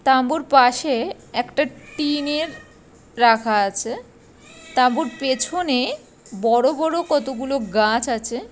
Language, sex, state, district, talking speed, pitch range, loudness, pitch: Bengali, female, West Bengal, Purulia, 90 wpm, 235-295 Hz, -20 LUFS, 260 Hz